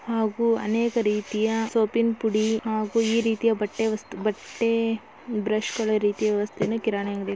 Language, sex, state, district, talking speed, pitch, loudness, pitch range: Kannada, female, Karnataka, Belgaum, 140 wpm, 220 Hz, -25 LUFS, 215-230 Hz